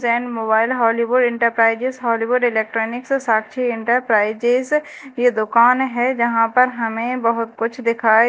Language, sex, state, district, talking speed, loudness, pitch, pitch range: Hindi, female, Madhya Pradesh, Dhar, 125 wpm, -18 LUFS, 235 Hz, 225-250 Hz